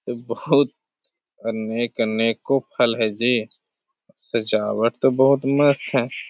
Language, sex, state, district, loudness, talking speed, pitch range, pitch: Hindi, male, Bihar, Jahanabad, -21 LUFS, 115 wpm, 115-135 Hz, 120 Hz